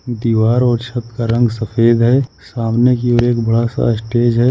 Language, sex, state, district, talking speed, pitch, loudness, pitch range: Hindi, male, Jharkhand, Ranchi, 200 wpm, 120 Hz, -15 LUFS, 115-120 Hz